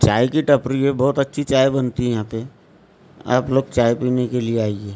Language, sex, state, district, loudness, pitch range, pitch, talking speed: Hindi, male, Maharashtra, Gondia, -19 LUFS, 120-140 Hz, 130 Hz, 215 wpm